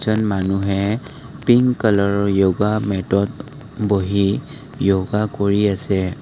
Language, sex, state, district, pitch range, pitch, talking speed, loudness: Assamese, male, Assam, Kamrup Metropolitan, 100-110 Hz, 100 Hz, 115 wpm, -19 LUFS